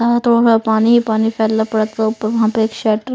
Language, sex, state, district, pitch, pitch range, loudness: Hindi, female, Punjab, Fazilka, 220 Hz, 220-230 Hz, -15 LUFS